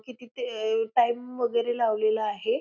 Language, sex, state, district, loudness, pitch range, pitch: Marathi, female, Maharashtra, Pune, -27 LUFS, 225-250 Hz, 240 Hz